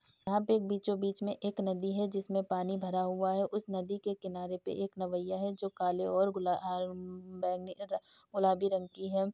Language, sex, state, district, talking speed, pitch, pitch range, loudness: Hindi, female, Uttar Pradesh, Deoria, 200 wpm, 195 Hz, 185-200 Hz, -35 LUFS